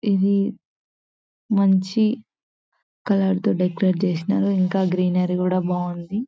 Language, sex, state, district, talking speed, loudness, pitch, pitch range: Telugu, female, Telangana, Nalgonda, 95 wpm, -21 LUFS, 190 Hz, 180-200 Hz